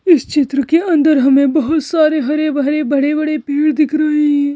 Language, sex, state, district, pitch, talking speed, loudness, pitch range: Hindi, female, Madhya Pradesh, Bhopal, 300 Hz, 185 wpm, -14 LUFS, 285-310 Hz